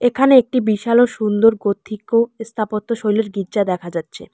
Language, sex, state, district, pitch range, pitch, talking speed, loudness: Bengali, female, West Bengal, Alipurduar, 205-235 Hz, 220 Hz, 140 wpm, -17 LUFS